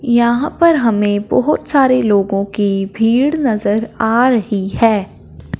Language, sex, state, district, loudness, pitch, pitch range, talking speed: Hindi, male, Punjab, Fazilka, -14 LUFS, 225 Hz, 205-255 Hz, 130 wpm